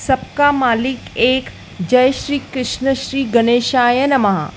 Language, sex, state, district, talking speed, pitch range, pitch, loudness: Hindi, female, Madhya Pradesh, Dhar, 120 wpm, 240-270 Hz, 255 Hz, -16 LUFS